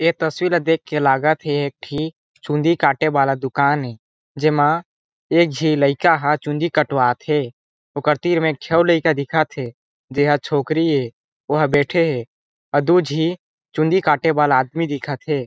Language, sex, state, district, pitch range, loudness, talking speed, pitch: Chhattisgarhi, male, Chhattisgarh, Jashpur, 140-160 Hz, -18 LUFS, 180 wpm, 150 Hz